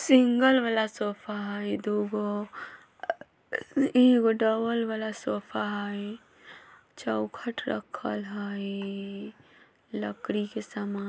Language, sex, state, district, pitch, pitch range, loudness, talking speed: Bajjika, female, Bihar, Vaishali, 210 Hz, 205-230 Hz, -28 LUFS, 105 wpm